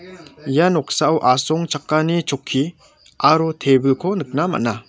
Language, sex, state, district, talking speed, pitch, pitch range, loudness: Garo, male, Meghalaya, West Garo Hills, 100 wpm, 155 Hz, 135-165 Hz, -18 LUFS